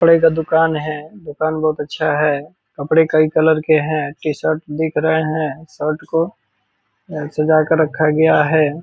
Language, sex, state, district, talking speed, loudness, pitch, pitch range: Hindi, male, Bihar, Purnia, 165 wpm, -17 LUFS, 155 Hz, 150-160 Hz